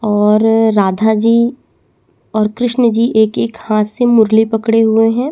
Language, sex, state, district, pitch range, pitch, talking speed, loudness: Hindi, female, Chhattisgarh, Bastar, 215-230 Hz, 225 Hz, 160 wpm, -12 LUFS